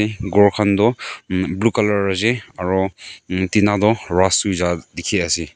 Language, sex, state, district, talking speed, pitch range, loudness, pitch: Nagamese, male, Nagaland, Kohima, 160 wpm, 90-105 Hz, -18 LUFS, 95 Hz